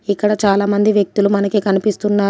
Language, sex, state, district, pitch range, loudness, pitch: Telugu, female, Telangana, Komaram Bheem, 200-210 Hz, -15 LUFS, 205 Hz